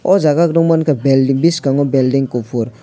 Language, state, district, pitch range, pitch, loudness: Kokborok, Tripura, West Tripura, 135-165 Hz, 135 Hz, -14 LUFS